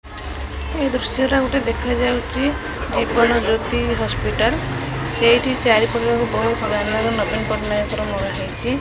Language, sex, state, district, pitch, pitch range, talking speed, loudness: Odia, female, Odisha, Khordha, 235 Hz, 220-260 Hz, 100 wpm, -19 LUFS